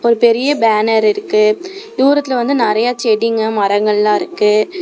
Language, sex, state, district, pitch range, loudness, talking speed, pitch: Tamil, female, Tamil Nadu, Namakkal, 215-290 Hz, -13 LUFS, 125 wpm, 235 Hz